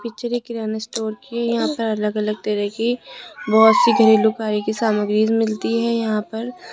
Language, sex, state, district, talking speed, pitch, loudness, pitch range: Hindi, female, Rajasthan, Jaipur, 195 wpm, 220 Hz, -19 LUFS, 215-230 Hz